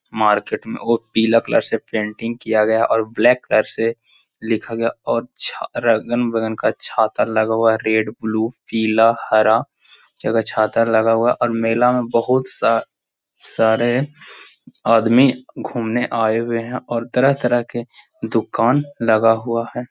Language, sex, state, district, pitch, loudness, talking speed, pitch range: Hindi, male, Bihar, Gaya, 115 Hz, -18 LUFS, 150 wpm, 110-120 Hz